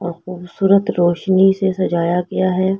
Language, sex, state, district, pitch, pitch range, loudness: Hindi, female, Delhi, New Delhi, 185 Hz, 175-195 Hz, -16 LUFS